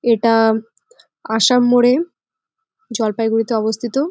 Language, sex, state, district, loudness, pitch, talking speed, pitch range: Bengali, female, West Bengal, Jalpaiguri, -16 LUFS, 240 Hz, 85 wpm, 225-325 Hz